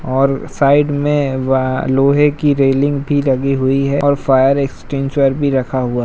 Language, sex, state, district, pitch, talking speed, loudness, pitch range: Hindi, male, Uttar Pradesh, Jalaun, 135 Hz, 180 wpm, -14 LUFS, 135-145 Hz